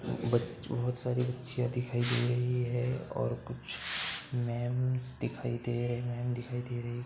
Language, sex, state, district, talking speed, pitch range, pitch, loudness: Hindi, male, Uttar Pradesh, Budaun, 170 wpm, 120-125 Hz, 120 Hz, -33 LUFS